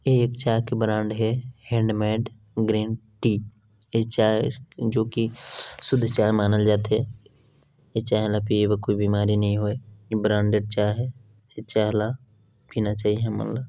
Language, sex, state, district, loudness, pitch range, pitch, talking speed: Hindi, male, Chhattisgarh, Balrampur, -24 LUFS, 105-115 Hz, 110 Hz, 160 wpm